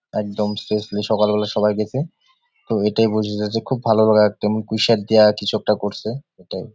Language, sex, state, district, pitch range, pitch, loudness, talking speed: Bengali, male, West Bengal, Jalpaiguri, 105-110 Hz, 105 Hz, -19 LUFS, 195 wpm